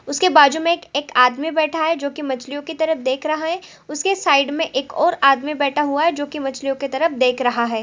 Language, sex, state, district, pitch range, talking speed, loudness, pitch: Hindi, female, Chhattisgarh, Sukma, 275-320 Hz, 250 wpm, -18 LUFS, 290 Hz